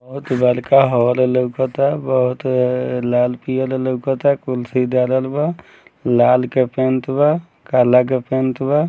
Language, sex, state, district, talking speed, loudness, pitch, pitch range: Bhojpuri, male, Bihar, Muzaffarpur, 120 wpm, -17 LUFS, 130 Hz, 125-135 Hz